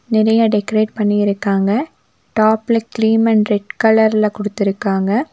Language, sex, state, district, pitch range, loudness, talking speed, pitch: Tamil, female, Tamil Nadu, Nilgiris, 205-220 Hz, -16 LUFS, 100 wpm, 215 Hz